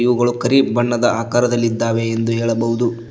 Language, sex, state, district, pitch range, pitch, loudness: Kannada, male, Karnataka, Koppal, 115-120 Hz, 120 Hz, -17 LUFS